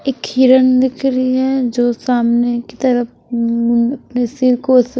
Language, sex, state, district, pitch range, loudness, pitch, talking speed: Hindi, female, Chhattisgarh, Raipur, 240-255 Hz, -15 LUFS, 250 Hz, 170 wpm